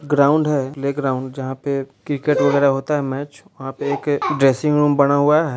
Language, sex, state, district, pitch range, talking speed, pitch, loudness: Bhojpuri, male, Bihar, Saran, 135-145 Hz, 215 wpm, 140 Hz, -19 LUFS